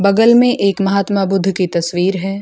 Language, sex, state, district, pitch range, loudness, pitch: Hindi, female, Bihar, Gaya, 190-200 Hz, -14 LUFS, 195 Hz